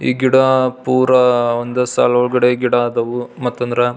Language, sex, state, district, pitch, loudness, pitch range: Kannada, male, Karnataka, Belgaum, 125 Hz, -15 LUFS, 120-130 Hz